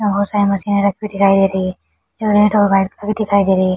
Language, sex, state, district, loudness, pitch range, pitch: Hindi, female, Chhattisgarh, Bilaspur, -15 LUFS, 195-210 Hz, 200 Hz